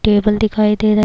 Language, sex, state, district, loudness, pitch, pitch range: Urdu, female, Bihar, Kishanganj, -15 LUFS, 210 Hz, 210-215 Hz